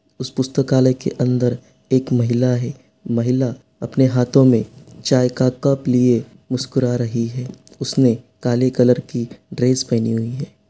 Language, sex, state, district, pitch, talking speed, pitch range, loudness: Hindi, male, Bihar, Sitamarhi, 125 Hz, 145 wpm, 120-130 Hz, -18 LUFS